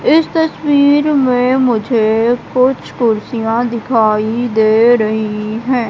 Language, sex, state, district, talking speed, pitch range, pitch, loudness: Hindi, female, Madhya Pradesh, Katni, 100 wpm, 220-260 Hz, 235 Hz, -13 LUFS